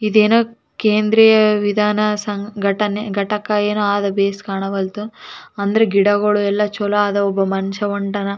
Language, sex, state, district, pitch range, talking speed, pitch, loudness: Kannada, female, Karnataka, Raichur, 200-210 Hz, 35 wpm, 205 Hz, -17 LUFS